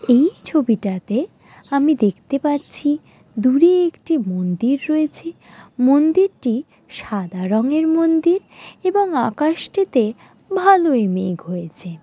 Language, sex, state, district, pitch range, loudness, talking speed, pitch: Bengali, female, West Bengal, Jalpaiguri, 210-325 Hz, -18 LUFS, 90 wpm, 275 Hz